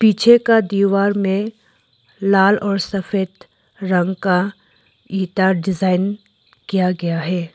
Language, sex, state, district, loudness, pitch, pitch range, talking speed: Hindi, female, Arunachal Pradesh, Lower Dibang Valley, -17 LUFS, 195 Hz, 185-200 Hz, 110 wpm